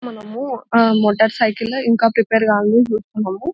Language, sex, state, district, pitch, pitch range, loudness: Telugu, female, Telangana, Nalgonda, 225 Hz, 215-235 Hz, -16 LUFS